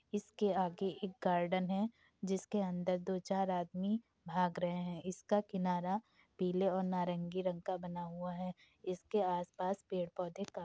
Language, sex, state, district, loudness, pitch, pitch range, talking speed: Hindi, female, Uttar Pradesh, Gorakhpur, -38 LUFS, 185 Hz, 180-195 Hz, 165 wpm